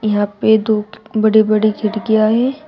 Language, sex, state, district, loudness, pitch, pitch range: Hindi, female, Uttar Pradesh, Shamli, -15 LUFS, 215 Hz, 215-220 Hz